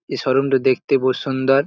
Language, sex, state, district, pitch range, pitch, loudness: Bengali, male, West Bengal, Jalpaiguri, 130-135 Hz, 135 Hz, -18 LUFS